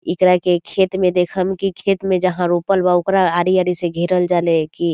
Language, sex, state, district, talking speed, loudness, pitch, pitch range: Bhojpuri, female, Bihar, Saran, 230 wpm, -17 LUFS, 180 Hz, 175-190 Hz